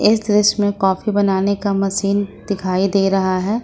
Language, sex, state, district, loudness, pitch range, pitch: Hindi, female, Jharkhand, Ranchi, -17 LUFS, 195-205 Hz, 200 Hz